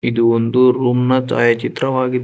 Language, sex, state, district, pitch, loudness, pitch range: Kannada, male, Karnataka, Bangalore, 125 Hz, -15 LUFS, 120-130 Hz